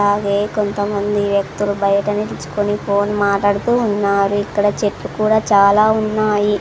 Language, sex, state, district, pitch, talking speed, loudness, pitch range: Telugu, female, Andhra Pradesh, Sri Satya Sai, 205 Hz, 120 wpm, -16 LUFS, 200-210 Hz